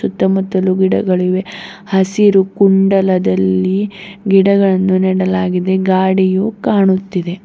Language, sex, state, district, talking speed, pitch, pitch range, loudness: Kannada, female, Karnataka, Bidar, 65 wpm, 190 Hz, 185-195 Hz, -13 LUFS